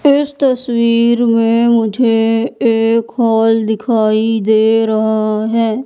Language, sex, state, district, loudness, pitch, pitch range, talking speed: Hindi, female, Madhya Pradesh, Katni, -13 LUFS, 225 Hz, 220-235 Hz, 100 wpm